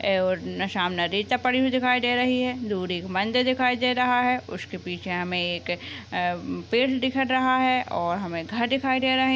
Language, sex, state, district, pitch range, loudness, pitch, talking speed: Hindi, female, Rajasthan, Churu, 180-255 Hz, -24 LUFS, 235 Hz, 190 wpm